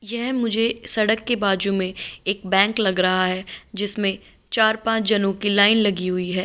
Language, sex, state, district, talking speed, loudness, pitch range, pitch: Hindi, female, Andhra Pradesh, Guntur, 185 wpm, -20 LUFS, 190-225 Hz, 205 Hz